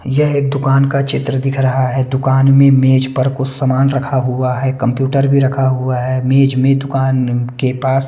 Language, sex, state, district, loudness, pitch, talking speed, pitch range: Hindi, male, Bihar, West Champaran, -14 LUFS, 135 Hz, 210 wpm, 130-135 Hz